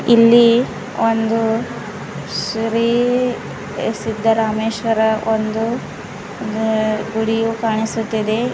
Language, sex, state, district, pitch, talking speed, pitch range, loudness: Kannada, female, Karnataka, Bidar, 225 Hz, 55 wpm, 220-230 Hz, -18 LUFS